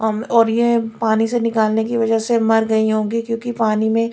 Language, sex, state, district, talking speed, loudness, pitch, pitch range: Hindi, female, Delhi, New Delhi, 205 wpm, -17 LUFS, 225 Hz, 220-230 Hz